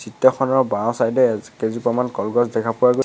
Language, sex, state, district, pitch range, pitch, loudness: Assamese, male, Assam, Sonitpur, 115-130 Hz, 120 Hz, -19 LUFS